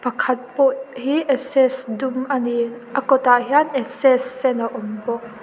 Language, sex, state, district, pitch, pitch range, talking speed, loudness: Mizo, female, Mizoram, Aizawl, 260 Hz, 240-270 Hz, 165 wpm, -19 LUFS